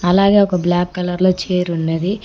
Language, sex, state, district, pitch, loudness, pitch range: Telugu, female, Telangana, Mahabubabad, 180 Hz, -16 LUFS, 175-190 Hz